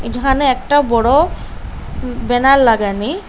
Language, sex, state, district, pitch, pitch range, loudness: Bengali, female, Assam, Hailakandi, 265 Hz, 235-285 Hz, -14 LUFS